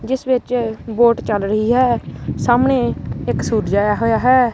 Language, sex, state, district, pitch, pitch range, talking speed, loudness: Punjabi, male, Punjab, Kapurthala, 235 Hz, 220-255 Hz, 160 wpm, -17 LUFS